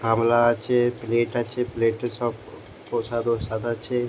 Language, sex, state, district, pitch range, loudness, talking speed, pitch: Bengali, male, West Bengal, Jhargram, 115-120 Hz, -24 LUFS, 175 wpm, 120 Hz